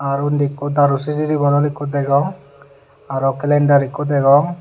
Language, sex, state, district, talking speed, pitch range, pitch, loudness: Chakma, male, Tripura, Unakoti, 155 wpm, 140-145 Hz, 145 Hz, -17 LUFS